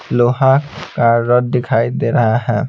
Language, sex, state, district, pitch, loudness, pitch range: Hindi, male, Bihar, Patna, 120 Hz, -14 LUFS, 115-135 Hz